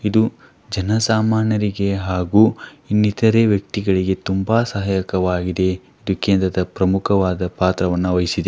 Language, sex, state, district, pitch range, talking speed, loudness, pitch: Kannada, male, Karnataka, Dharwad, 90-105 Hz, 85 wpm, -19 LUFS, 95 Hz